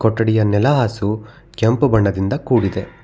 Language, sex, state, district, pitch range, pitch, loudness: Kannada, male, Karnataka, Bangalore, 105-130 Hz, 110 Hz, -17 LUFS